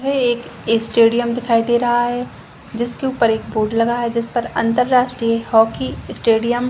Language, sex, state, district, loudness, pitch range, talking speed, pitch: Hindi, female, Chhattisgarh, Rajnandgaon, -18 LUFS, 230-240 Hz, 160 wpm, 235 Hz